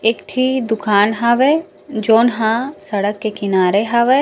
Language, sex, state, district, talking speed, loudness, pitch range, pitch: Chhattisgarhi, female, Chhattisgarh, Raigarh, 155 wpm, -16 LUFS, 205-245 Hz, 225 Hz